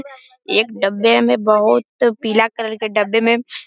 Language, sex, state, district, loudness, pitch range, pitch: Hindi, male, Bihar, Jamui, -16 LUFS, 210-235 Hz, 225 Hz